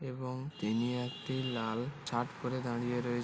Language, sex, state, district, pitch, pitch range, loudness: Bengali, male, West Bengal, Paschim Medinipur, 125 Hz, 120-130 Hz, -36 LUFS